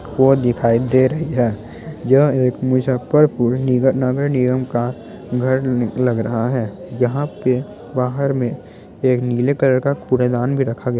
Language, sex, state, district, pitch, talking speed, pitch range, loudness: Hindi, male, Bihar, Muzaffarpur, 125 Hz, 155 wpm, 120-135 Hz, -18 LUFS